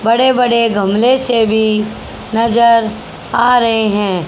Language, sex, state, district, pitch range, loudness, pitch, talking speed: Hindi, female, Haryana, Charkhi Dadri, 215-235 Hz, -12 LUFS, 230 Hz, 125 wpm